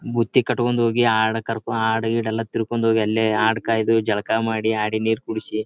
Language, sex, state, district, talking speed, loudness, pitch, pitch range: Kannada, male, Karnataka, Bijapur, 190 wpm, -21 LUFS, 110 Hz, 110-115 Hz